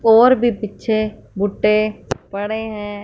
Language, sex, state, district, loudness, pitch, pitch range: Hindi, female, Punjab, Fazilka, -18 LUFS, 215 Hz, 205-225 Hz